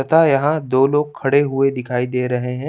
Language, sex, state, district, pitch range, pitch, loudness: Hindi, male, Chandigarh, Chandigarh, 125-145 Hz, 135 Hz, -17 LUFS